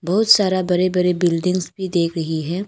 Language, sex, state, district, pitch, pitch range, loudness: Hindi, female, Arunachal Pradesh, Longding, 180 Hz, 170-185 Hz, -18 LUFS